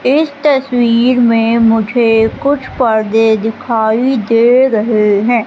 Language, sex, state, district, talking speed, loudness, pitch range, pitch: Hindi, female, Madhya Pradesh, Katni, 110 wpm, -11 LUFS, 225-255 Hz, 230 Hz